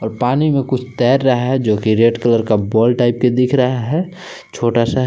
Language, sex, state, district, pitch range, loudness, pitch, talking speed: Hindi, male, Jharkhand, Palamu, 115-130 Hz, -15 LUFS, 125 Hz, 235 wpm